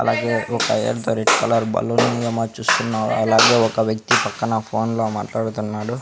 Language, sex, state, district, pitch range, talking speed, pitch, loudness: Telugu, male, Andhra Pradesh, Sri Satya Sai, 110-115 Hz, 120 wpm, 110 Hz, -19 LUFS